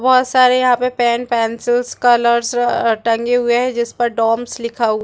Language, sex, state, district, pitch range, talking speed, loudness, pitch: Hindi, female, Chhattisgarh, Bastar, 235-245 Hz, 190 wpm, -15 LUFS, 240 Hz